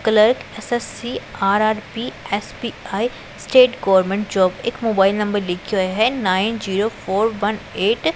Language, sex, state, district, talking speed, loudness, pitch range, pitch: Punjabi, female, Punjab, Pathankot, 140 wpm, -19 LUFS, 195-225 Hz, 210 Hz